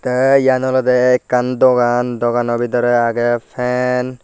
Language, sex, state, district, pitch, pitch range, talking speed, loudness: Chakma, male, Tripura, Dhalai, 125 Hz, 120-125 Hz, 125 wpm, -15 LUFS